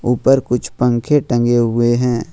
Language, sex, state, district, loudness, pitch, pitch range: Hindi, male, Jharkhand, Ranchi, -15 LUFS, 120 Hz, 120-125 Hz